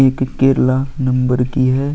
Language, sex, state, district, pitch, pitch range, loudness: Hindi, male, Chhattisgarh, Kabirdham, 130 Hz, 130-135 Hz, -16 LUFS